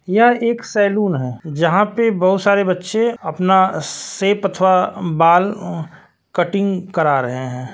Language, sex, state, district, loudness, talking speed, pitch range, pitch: Hindi, male, Uttar Pradesh, Varanasi, -17 LUFS, 140 wpm, 165-205 Hz, 190 Hz